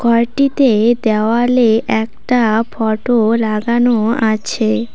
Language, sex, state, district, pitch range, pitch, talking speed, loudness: Bengali, female, West Bengal, Cooch Behar, 220-240 Hz, 230 Hz, 75 wpm, -14 LUFS